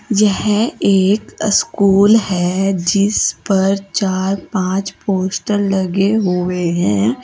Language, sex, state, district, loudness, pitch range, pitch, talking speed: Hindi, female, Uttar Pradesh, Saharanpur, -15 LUFS, 185-205 Hz, 195 Hz, 100 wpm